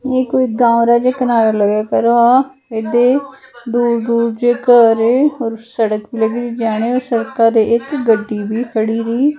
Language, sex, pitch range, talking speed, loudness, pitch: Punjabi, female, 225-255 Hz, 175 wpm, -14 LUFS, 235 Hz